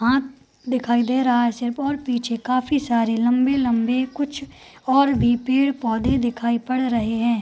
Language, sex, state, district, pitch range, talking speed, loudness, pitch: Hindi, female, Bihar, Purnia, 235-265 Hz, 155 wpm, -21 LUFS, 250 Hz